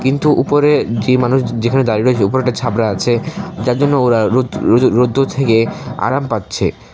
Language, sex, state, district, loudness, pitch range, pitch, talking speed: Bengali, male, Tripura, West Tripura, -14 LUFS, 115-135 Hz, 125 Hz, 175 wpm